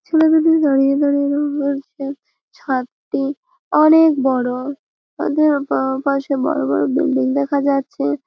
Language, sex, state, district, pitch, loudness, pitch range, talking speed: Bengali, female, West Bengal, Malda, 280 Hz, -17 LUFS, 275-310 Hz, 125 wpm